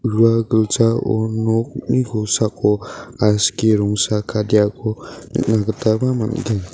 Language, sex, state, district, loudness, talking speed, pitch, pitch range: Garo, male, Meghalaya, West Garo Hills, -18 LUFS, 90 wpm, 110 Hz, 105-115 Hz